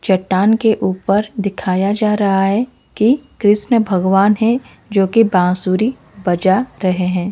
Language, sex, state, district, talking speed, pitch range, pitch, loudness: Hindi, female, Odisha, Malkangiri, 140 wpm, 190-220 Hz, 200 Hz, -15 LUFS